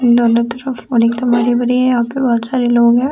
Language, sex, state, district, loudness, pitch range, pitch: Hindi, female, Bihar, Sitamarhi, -14 LUFS, 235-250 Hz, 240 Hz